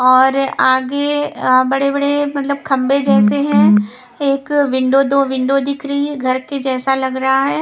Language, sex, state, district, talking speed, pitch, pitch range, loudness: Hindi, female, Punjab, Kapurthala, 175 wpm, 270 Hz, 260-280 Hz, -15 LUFS